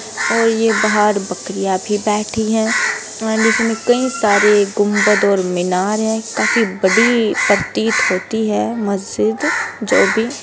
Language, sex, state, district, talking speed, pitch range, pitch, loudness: Hindi, female, Bihar, Saran, 120 wpm, 200-220 Hz, 215 Hz, -15 LUFS